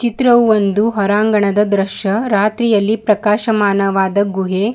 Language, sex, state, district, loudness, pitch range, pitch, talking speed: Kannada, female, Karnataka, Bidar, -14 LUFS, 200-220 Hz, 210 Hz, 90 wpm